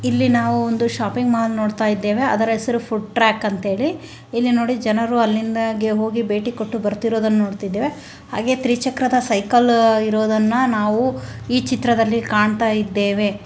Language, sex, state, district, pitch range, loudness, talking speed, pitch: Kannada, female, Karnataka, Raichur, 215-240 Hz, -19 LUFS, 140 wpm, 225 Hz